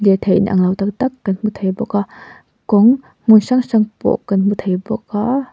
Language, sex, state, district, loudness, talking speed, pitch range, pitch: Mizo, female, Mizoram, Aizawl, -16 LUFS, 230 wpm, 195-230 Hz, 205 Hz